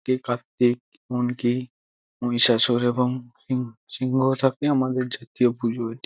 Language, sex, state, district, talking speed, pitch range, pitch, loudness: Bengali, male, West Bengal, Jhargram, 100 wpm, 120-130 Hz, 125 Hz, -23 LUFS